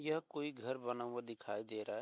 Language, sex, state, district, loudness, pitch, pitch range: Hindi, male, Bihar, Begusarai, -43 LUFS, 120 Hz, 115-145 Hz